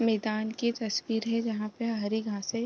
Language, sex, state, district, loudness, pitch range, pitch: Hindi, female, Bihar, East Champaran, -31 LUFS, 215-230 Hz, 225 Hz